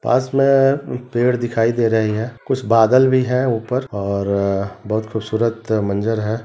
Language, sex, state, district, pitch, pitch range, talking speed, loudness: Hindi, male, Chhattisgarh, Rajnandgaon, 115 Hz, 110-125 Hz, 160 wpm, -18 LUFS